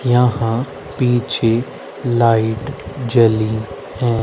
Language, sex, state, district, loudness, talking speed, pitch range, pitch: Hindi, male, Haryana, Rohtak, -17 LUFS, 70 wpm, 110-125 Hz, 120 Hz